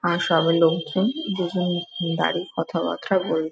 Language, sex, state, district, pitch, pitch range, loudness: Bengali, female, West Bengal, Dakshin Dinajpur, 175 Hz, 165-185 Hz, -23 LUFS